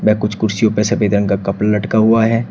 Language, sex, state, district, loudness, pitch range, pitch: Hindi, male, Uttar Pradesh, Shamli, -15 LUFS, 105-110 Hz, 105 Hz